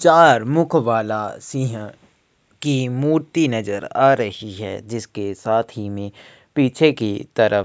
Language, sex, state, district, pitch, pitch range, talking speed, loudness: Hindi, male, Chhattisgarh, Kabirdham, 115 Hz, 105-145 Hz, 140 wpm, -19 LUFS